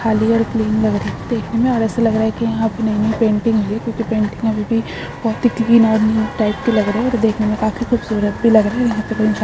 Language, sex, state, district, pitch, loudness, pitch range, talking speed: Hindi, female, Uttarakhand, Uttarkashi, 220 Hz, -17 LUFS, 215-230 Hz, 290 wpm